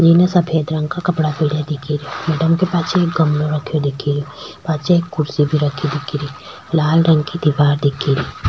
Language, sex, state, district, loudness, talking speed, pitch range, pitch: Rajasthani, female, Rajasthan, Churu, -17 LUFS, 205 wpm, 145-165 Hz, 155 Hz